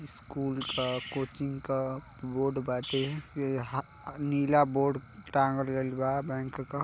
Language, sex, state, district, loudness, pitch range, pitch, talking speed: Bhojpuri, male, Uttar Pradesh, Deoria, -31 LUFS, 130-140 Hz, 135 Hz, 130 wpm